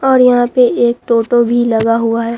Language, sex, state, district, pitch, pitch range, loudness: Hindi, female, Bihar, Katihar, 240 Hz, 230-245 Hz, -12 LUFS